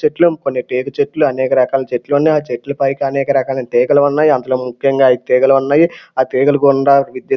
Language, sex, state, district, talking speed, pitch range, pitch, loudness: Telugu, male, Andhra Pradesh, Srikakulam, 165 wpm, 130-145 Hz, 135 Hz, -14 LUFS